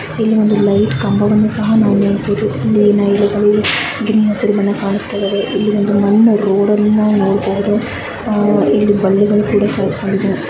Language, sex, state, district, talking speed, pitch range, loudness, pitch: Kannada, female, Karnataka, Mysore, 55 wpm, 200-210 Hz, -13 LUFS, 205 Hz